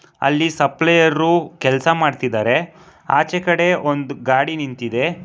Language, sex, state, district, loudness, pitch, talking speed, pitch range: Kannada, male, Karnataka, Bangalore, -17 LUFS, 160 Hz, 105 wpm, 140-170 Hz